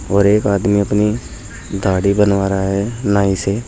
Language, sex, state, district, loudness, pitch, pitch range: Hindi, male, Uttar Pradesh, Saharanpur, -16 LUFS, 100 Hz, 100-105 Hz